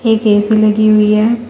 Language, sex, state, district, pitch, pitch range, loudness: Hindi, female, Uttar Pradesh, Shamli, 215 Hz, 210-220 Hz, -11 LUFS